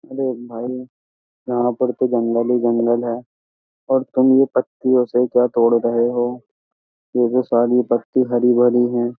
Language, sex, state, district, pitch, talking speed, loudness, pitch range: Hindi, male, Uttar Pradesh, Jyotiba Phule Nagar, 120 Hz, 155 wpm, -18 LUFS, 120-125 Hz